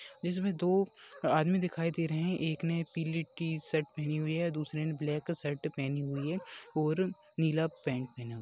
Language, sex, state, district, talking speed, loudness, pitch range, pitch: Hindi, female, West Bengal, Dakshin Dinajpur, 185 wpm, -34 LUFS, 150-170 Hz, 160 Hz